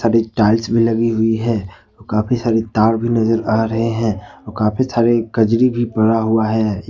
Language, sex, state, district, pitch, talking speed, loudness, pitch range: Hindi, male, Jharkhand, Ranchi, 115 Hz, 180 wpm, -16 LUFS, 110-115 Hz